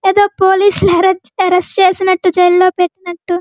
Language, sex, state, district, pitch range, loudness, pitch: Telugu, female, Andhra Pradesh, Guntur, 360-380 Hz, -12 LUFS, 370 Hz